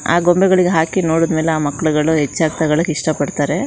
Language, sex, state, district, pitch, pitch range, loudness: Kannada, female, Karnataka, Shimoga, 160 Hz, 155-170 Hz, -16 LUFS